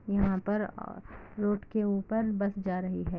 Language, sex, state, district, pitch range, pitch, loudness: Hindi, female, Andhra Pradesh, Anantapur, 195-215 Hz, 205 Hz, -31 LUFS